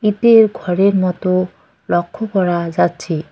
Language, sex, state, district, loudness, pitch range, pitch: Bengali, female, West Bengal, Cooch Behar, -15 LUFS, 175-210 Hz, 185 Hz